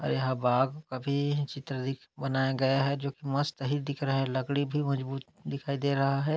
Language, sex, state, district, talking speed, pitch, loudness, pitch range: Hindi, male, Chhattisgarh, Kabirdham, 205 wpm, 140 Hz, -30 LUFS, 135-140 Hz